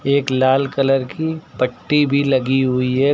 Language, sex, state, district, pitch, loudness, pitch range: Hindi, male, Uttar Pradesh, Lucknow, 135 Hz, -18 LUFS, 130-140 Hz